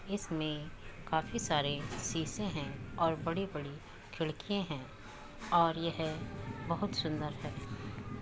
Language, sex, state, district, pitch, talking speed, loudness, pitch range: Hindi, male, Uttar Pradesh, Muzaffarnagar, 150 Hz, 100 wpm, -36 LUFS, 125-165 Hz